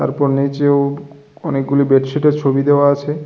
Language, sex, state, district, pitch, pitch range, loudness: Bengali, male, Tripura, West Tripura, 140 Hz, 140-145 Hz, -15 LUFS